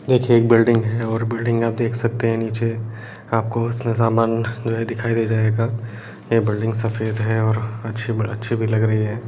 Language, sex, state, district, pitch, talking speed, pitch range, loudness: Kumaoni, male, Uttarakhand, Uttarkashi, 115 Hz, 180 wpm, 110-115 Hz, -20 LUFS